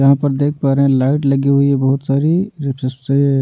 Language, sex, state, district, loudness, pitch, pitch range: Hindi, male, Bihar, Patna, -15 LUFS, 140 Hz, 135-140 Hz